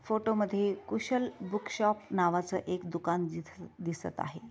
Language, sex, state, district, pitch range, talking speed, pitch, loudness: Marathi, female, Maharashtra, Dhule, 175-210 Hz, 145 wpm, 195 Hz, -33 LUFS